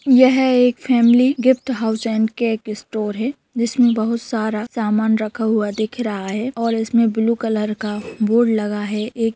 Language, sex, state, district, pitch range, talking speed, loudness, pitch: Hindi, female, Jharkhand, Sahebganj, 215-240 Hz, 175 wpm, -18 LUFS, 225 Hz